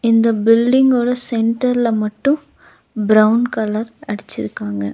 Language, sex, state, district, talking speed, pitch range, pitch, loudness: Tamil, female, Tamil Nadu, Nilgiris, 95 wpm, 215-245 Hz, 230 Hz, -16 LUFS